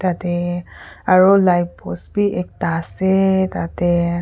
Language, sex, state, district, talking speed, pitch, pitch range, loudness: Nagamese, female, Nagaland, Kohima, 115 wpm, 180 Hz, 175-190 Hz, -18 LUFS